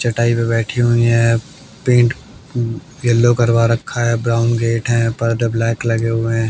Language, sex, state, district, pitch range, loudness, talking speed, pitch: Hindi, male, Haryana, Jhajjar, 115-120 Hz, -16 LUFS, 165 wpm, 115 Hz